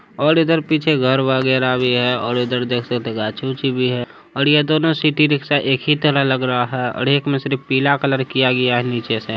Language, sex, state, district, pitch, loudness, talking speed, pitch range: Hindi, male, Bihar, Saharsa, 130 Hz, -17 LUFS, 215 wpm, 125-145 Hz